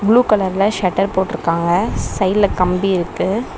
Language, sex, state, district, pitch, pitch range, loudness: Tamil, female, Tamil Nadu, Chennai, 190 Hz, 180-205 Hz, -17 LUFS